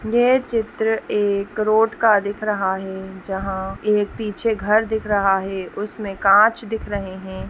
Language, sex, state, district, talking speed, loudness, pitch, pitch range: Hindi, female, Bihar, Saharsa, 160 wpm, -20 LUFS, 205 Hz, 195-220 Hz